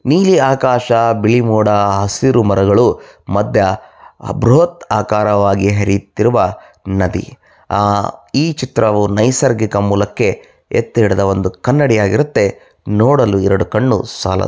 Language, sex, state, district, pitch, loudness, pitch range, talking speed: Kannada, male, Karnataka, Bellary, 110 Hz, -14 LUFS, 100-130 Hz, 100 wpm